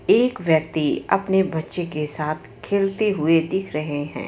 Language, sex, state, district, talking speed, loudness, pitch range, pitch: Hindi, female, Jharkhand, Ranchi, 155 wpm, -22 LUFS, 155-195 Hz, 165 Hz